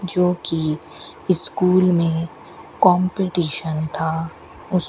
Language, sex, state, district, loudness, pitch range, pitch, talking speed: Hindi, female, Rajasthan, Bikaner, -20 LUFS, 160-180 Hz, 175 Hz, 60 wpm